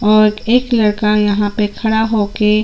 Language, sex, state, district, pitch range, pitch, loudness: Hindi, female, Chhattisgarh, Sukma, 210-220 Hz, 215 Hz, -14 LUFS